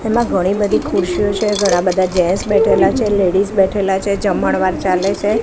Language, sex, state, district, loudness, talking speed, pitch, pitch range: Gujarati, female, Gujarat, Gandhinagar, -15 LUFS, 175 wpm, 195 Hz, 185-205 Hz